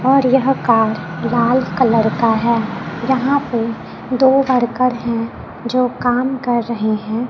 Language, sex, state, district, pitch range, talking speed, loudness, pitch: Hindi, male, Chhattisgarh, Raipur, 230-255 Hz, 140 wpm, -16 LUFS, 240 Hz